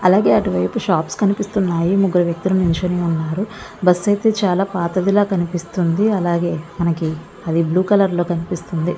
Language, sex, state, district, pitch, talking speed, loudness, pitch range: Telugu, female, Andhra Pradesh, Visakhapatnam, 180 Hz, 225 wpm, -18 LUFS, 170-195 Hz